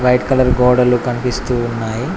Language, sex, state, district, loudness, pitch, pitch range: Telugu, male, Telangana, Mahabubabad, -15 LUFS, 125 Hz, 120-125 Hz